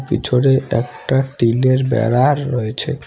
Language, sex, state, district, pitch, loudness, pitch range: Bengali, male, West Bengal, Cooch Behar, 130 Hz, -17 LUFS, 120-135 Hz